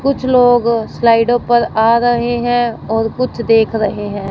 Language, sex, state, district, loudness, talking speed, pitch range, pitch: Hindi, female, Punjab, Fazilka, -14 LUFS, 165 wpm, 225-240 Hz, 235 Hz